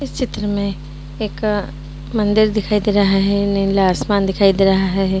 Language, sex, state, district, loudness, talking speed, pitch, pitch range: Hindi, female, Uttar Pradesh, Jyotiba Phule Nagar, -17 LUFS, 205 wpm, 200 Hz, 190-210 Hz